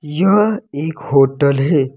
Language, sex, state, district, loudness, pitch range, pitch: Hindi, male, Jharkhand, Deoghar, -15 LUFS, 140-190 Hz, 150 Hz